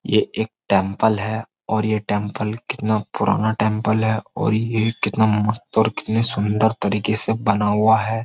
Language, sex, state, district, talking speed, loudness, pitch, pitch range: Hindi, male, Uttar Pradesh, Jyotiba Phule Nagar, 165 wpm, -20 LUFS, 110 Hz, 105-110 Hz